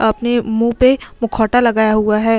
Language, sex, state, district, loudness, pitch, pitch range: Hindi, female, Chhattisgarh, Sukma, -15 LUFS, 225 Hz, 220-240 Hz